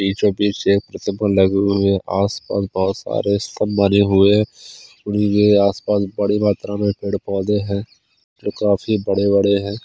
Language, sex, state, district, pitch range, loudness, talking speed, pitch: Hindi, male, Chandigarh, Chandigarh, 100-105 Hz, -18 LUFS, 160 wpm, 100 Hz